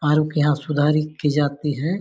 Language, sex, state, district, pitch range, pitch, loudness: Hindi, male, Chhattisgarh, Bastar, 145-155 Hz, 150 Hz, -21 LUFS